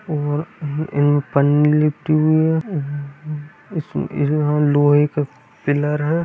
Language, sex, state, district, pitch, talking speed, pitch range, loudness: Hindi, male, Bihar, Darbhanga, 150 Hz, 125 wpm, 145-155 Hz, -19 LUFS